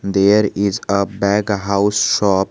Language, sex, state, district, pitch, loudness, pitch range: English, male, Jharkhand, Garhwa, 100 Hz, -16 LUFS, 100-105 Hz